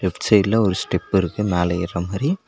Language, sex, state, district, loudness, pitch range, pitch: Tamil, male, Tamil Nadu, Nilgiris, -20 LUFS, 90-105 Hz, 95 Hz